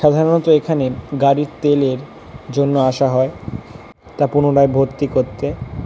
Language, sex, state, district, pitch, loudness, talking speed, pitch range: Bengali, male, West Bengal, North 24 Parganas, 140 Hz, -16 LUFS, 125 wpm, 130-145 Hz